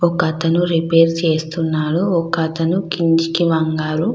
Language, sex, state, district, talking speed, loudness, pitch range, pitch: Telugu, female, Andhra Pradesh, Krishna, 115 wpm, -17 LUFS, 160-170 Hz, 165 Hz